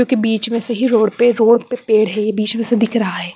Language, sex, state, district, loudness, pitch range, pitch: Hindi, female, Punjab, Pathankot, -15 LUFS, 215-235 Hz, 230 Hz